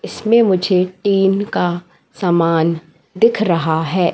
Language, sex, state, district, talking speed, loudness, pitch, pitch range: Hindi, female, Madhya Pradesh, Katni, 115 wpm, -16 LUFS, 180 Hz, 170-195 Hz